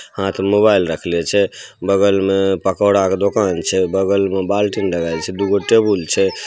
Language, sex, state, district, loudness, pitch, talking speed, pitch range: Maithili, male, Bihar, Samastipur, -16 LUFS, 100 Hz, 185 wpm, 95-100 Hz